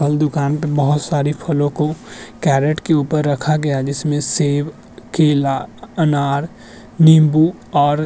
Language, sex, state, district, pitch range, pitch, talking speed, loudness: Hindi, male, Uttar Pradesh, Budaun, 145-155 Hz, 150 Hz, 150 wpm, -16 LUFS